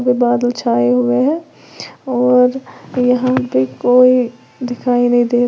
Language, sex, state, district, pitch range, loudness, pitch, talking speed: Hindi, female, Uttar Pradesh, Lalitpur, 240-250 Hz, -14 LUFS, 245 Hz, 140 wpm